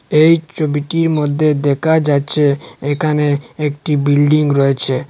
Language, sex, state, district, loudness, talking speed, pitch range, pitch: Bengali, male, Assam, Hailakandi, -15 LUFS, 105 wpm, 145-155 Hz, 150 Hz